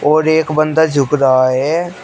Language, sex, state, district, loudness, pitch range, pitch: Hindi, male, Uttar Pradesh, Shamli, -13 LUFS, 140-160 Hz, 155 Hz